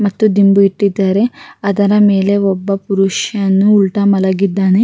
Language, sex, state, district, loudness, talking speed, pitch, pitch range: Kannada, female, Karnataka, Raichur, -13 LUFS, 110 wpm, 200 Hz, 195-205 Hz